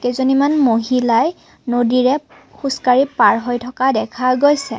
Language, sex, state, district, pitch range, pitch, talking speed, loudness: Assamese, female, Assam, Kamrup Metropolitan, 245-275 Hz, 255 Hz, 115 wpm, -16 LUFS